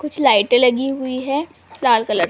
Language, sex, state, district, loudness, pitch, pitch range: Hindi, female, Maharashtra, Gondia, -17 LUFS, 270 Hz, 250-285 Hz